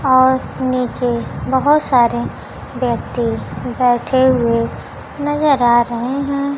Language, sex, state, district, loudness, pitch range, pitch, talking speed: Hindi, female, Bihar, Kaimur, -16 LUFS, 240-275 Hz, 255 Hz, 100 wpm